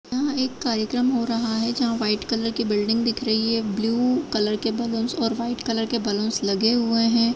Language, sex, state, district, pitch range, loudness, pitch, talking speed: Hindi, female, Uttar Pradesh, Jyotiba Phule Nagar, 220-240 Hz, -23 LUFS, 230 Hz, 210 wpm